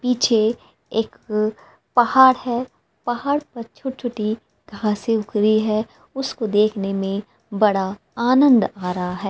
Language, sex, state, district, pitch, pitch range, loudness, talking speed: Hindi, female, Haryana, Rohtak, 220 Hz, 210-245 Hz, -20 LUFS, 130 wpm